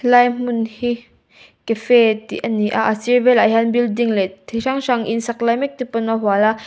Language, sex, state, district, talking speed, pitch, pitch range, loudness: Mizo, female, Mizoram, Aizawl, 215 wpm, 230 Hz, 220-245 Hz, -17 LUFS